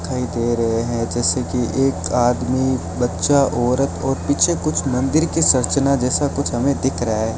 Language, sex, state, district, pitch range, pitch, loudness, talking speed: Hindi, male, Rajasthan, Bikaner, 120-135 Hz, 125 Hz, -18 LUFS, 180 wpm